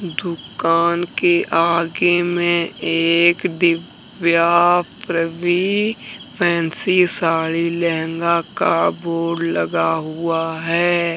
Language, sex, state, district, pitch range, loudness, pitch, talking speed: Hindi, male, Jharkhand, Deoghar, 165-175 Hz, -18 LUFS, 170 Hz, 80 wpm